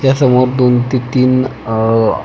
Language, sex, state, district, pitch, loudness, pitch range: Marathi, male, Maharashtra, Pune, 125 Hz, -13 LUFS, 120-130 Hz